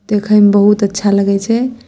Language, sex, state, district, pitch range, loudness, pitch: Maithili, female, Bihar, Samastipur, 200-215 Hz, -12 LUFS, 205 Hz